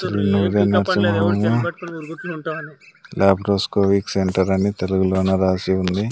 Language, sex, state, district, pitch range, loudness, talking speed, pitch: Telugu, male, Andhra Pradesh, Sri Satya Sai, 95-115 Hz, -19 LUFS, 60 wpm, 100 Hz